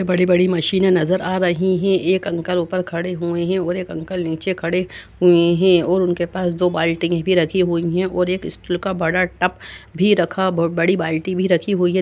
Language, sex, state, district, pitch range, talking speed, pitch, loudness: Hindi, male, Uttar Pradesh, Jalaun, 170-185 Hz, 210 wpm, 180 Hz, -18 LUFS